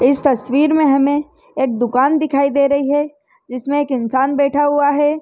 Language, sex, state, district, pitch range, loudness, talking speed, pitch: Hindi, female, Chhattisgarh, Rajnandgaon, 265-290 Hz, -16 LUFS, 185 wpm, 280 Hz